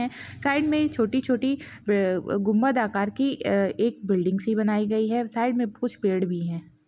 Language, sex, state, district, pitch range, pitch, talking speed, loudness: Hindi, female, Chhattisgarh, Balrampur, 195-250 Hz, 220 Hz, 185 wpm, -25 LUFS